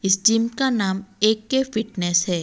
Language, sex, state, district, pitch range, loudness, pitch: Hindi, female, Odisha, Malkangiri, 190-230 Hz, -21 LUFS, 215 Hz